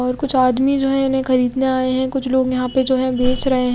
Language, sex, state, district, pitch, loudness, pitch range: Hindi, female, Chhattisgarh, Raipur, 260 Hz, -17 LUFS, 255-265 Hz